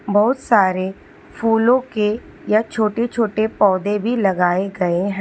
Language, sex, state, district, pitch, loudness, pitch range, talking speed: Hindi, female, Telangana, Hyderabad, 210 Hz, -18 LUFS, 195-230 Hz, 140 wpm